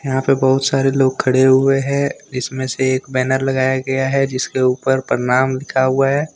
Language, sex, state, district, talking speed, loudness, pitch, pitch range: Hindi, male, Jharkhand, Deoghar, 180 wpm, -16 LUFS, 130 Hz, 130-135 Hz